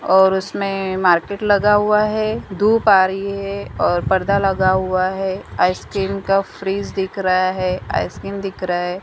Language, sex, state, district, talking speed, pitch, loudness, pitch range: Hindi, female, Maharashtra, Mumbai Suburban, 165 wpm, 190 Hz, -18 LUFS, 185-200 Hz